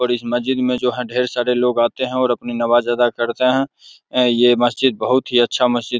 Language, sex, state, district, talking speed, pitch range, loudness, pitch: Hindi, male, Bihar, Begusarai, 240 wpm, 120-125 Hz, -17 LUFS, 125 Hz